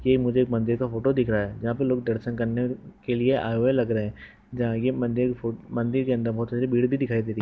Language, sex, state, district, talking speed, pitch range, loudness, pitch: Hindi, male, Maharashtra, Sindhudurg, 285 wpm, 115-125 Hz, -25 LUFS, 120 Hz